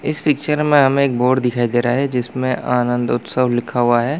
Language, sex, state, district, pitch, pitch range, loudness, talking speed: Hindi, male, Chhattisgarh, Bastar, 125 Hz, 120-140 Hz, -17 LUFS, 230 wpm